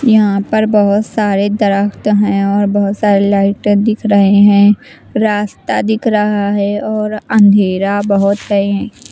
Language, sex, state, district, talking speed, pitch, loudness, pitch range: Hindi, female, Chandigarh, Chandigarh, 140 wpm, 205 Hz, -12 LUFS, 200-210 Hz